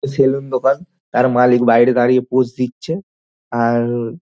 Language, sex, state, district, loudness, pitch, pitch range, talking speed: Bengali, male, West Bengal, Dakshin Dinajpur, -16 LUFS, 125 Hz, 120-135 Hz, 130 wpm